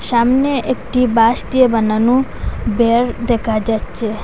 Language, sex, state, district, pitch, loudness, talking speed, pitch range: Bengali, female, Assam, Hailakandi, 235 Hz, -15 LUFS, 115 wpm, 225-250 Hz